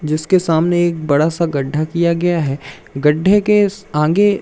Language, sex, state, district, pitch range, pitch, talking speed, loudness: Hindi, male, Madhya Pradesh, Umaria, 150-180 Hz, 165 Hz, 165 wpm, -15 LUFS